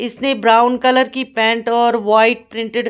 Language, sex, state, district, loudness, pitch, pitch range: Hindi, female, Maharashtra, Washim, -14 LUFS, 235 Hz, 225-250 Hz